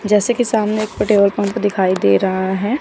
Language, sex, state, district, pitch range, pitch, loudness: Hindi, female, Chandigarh, Chandigarh, 190-215 Hz, 205 Hz, -16 LUFS